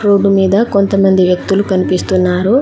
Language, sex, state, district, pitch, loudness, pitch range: Telugu, female, Telangana, Mahabubabad, 195 Hz, -12 LUFS, 185-200 Hz